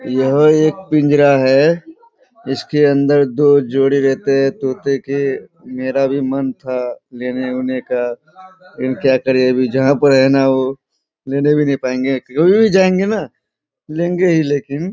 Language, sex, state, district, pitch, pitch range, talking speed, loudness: Hindi, male, Bihar, Kishanganj, 140 Hz, 130-150 Hz, 155 wpm, -15 LUFS